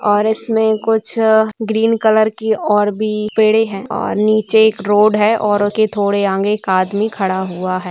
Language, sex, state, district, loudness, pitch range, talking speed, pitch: Hindi, female, Bihar, Saran, -15 LUFS, 205-220 Hz, 175 wpm, 215 Hz